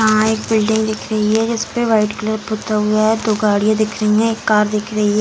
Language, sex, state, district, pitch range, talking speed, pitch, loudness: Hindi, female, Bihar, Samastipur, 215-220 Hz, 255 wpm, 215 Hz, -16 LUFS